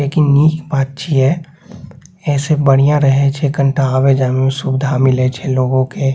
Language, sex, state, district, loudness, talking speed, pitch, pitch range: Maithili, male, Bihar, Saharsa, -14 LUFS, 165 wpm, 140 Hz, 130-150 Hz